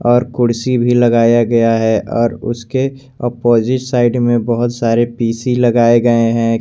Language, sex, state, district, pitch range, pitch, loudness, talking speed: Hindi, male, Jharkhand, Garhwa, 115-120 Hz, 120 Hz, -14 LUFS, 155 wpm